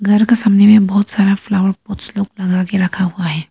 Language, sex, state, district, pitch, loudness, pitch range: Hindi, female, Arunachal Pradesh, Lower Dibang Valley, 200 Hz, -14 LUFS, 185-205 Hz